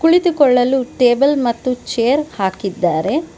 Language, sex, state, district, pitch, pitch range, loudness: Kannada, female, Karnataka, Bangalore, 255 Hz, 230-290 Hz, -16 LUFS